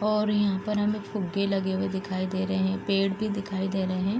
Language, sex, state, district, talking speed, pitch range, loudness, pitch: Hindi, female, Bihar, East Champaran, 240 wpm, 190-205 Hz, -27 LUFS, 195 Hz